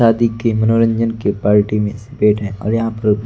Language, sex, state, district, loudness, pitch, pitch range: Hindi, male, Delhi, New Delhi, -16 LUFS, 110 Hz, 105-115 Hz